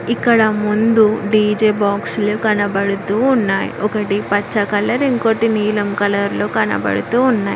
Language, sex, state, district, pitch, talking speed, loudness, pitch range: Telugu, female, Telangana, Mahabubabad, 210 Hz, 120 wpm, -16 LUFS, 205-225 Hz